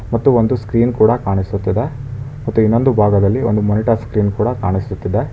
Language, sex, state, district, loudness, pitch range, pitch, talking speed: Kannada, male, Karnataka, Bangalore, -16 LUFS, 105-120 Hz, 110 Hz, 145 wpm